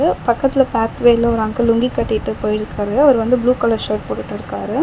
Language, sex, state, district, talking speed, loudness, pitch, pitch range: Tamil, female, Tamil Nadu, Chennai, 185 wpm, -17 LUFS, 235 Hz, 220-250 Hz